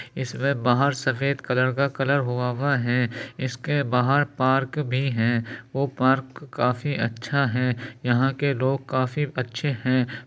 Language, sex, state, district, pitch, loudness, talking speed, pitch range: Hindi, male, Uttar Pradesh, Jyotiba Phule Nagar, 130 Hz, -24 LUFS, 145 wpm, 125-140 Hz